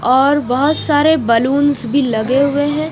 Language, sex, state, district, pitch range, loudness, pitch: Hindi, female, Punjab, Fazilka, 255-290 Hz, -14 LUFS, 280 Hz